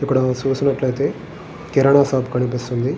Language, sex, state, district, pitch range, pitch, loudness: Telugu, male, Andhra Pradesh, Guntur, 125-140 Hz, 130 Hz, -18 LUFS